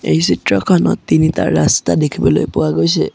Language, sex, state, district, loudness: Assamese, male, Assam, Sonitpur, -14 LUFS